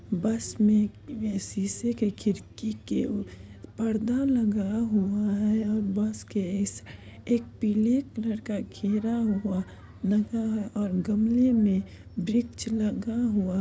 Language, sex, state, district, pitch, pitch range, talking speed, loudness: Hindi, female, Bihar, Purnia, 215 Hz, 205-225 Hz, 130 wpm, -28 LUFS